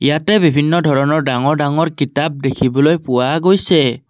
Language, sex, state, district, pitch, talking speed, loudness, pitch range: Assamese, male, Assam, Kamrup Metropolitan, 145 Hz, 130 wpm, -14 LUFS, 135-160 Hz